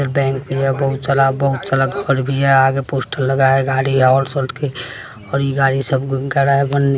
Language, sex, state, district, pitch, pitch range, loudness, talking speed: Hindi, male, Bihar, West Champaran, 135 Hz, 135-140 Hz, -16 LUFS, 165 wpm